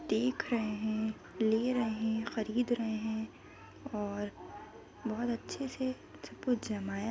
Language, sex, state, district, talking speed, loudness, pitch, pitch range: Hindi, female, Bihar, Jamui, 145 wpm, -35 LUFS, 225 Hz, 220-240 Hz